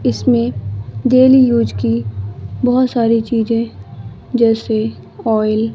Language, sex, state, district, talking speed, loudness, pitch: Hindi, female, Madhya Pradesh, Katni, 105 wpm, -15 LUFS, 220 Hz